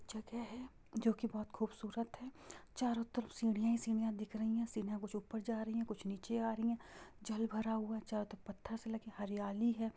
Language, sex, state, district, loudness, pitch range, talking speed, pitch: Hindi, female, Jharkhand, Jamtara, -41 LUFS, 215-230 Hz, 215 wpm, 225 Hz